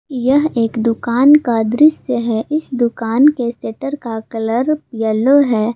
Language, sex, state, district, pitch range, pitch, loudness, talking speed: Hindi, female, Jharkhand, Palamu, 225-280 Hz, 240 Hz, -15 LUFS, 145 wpm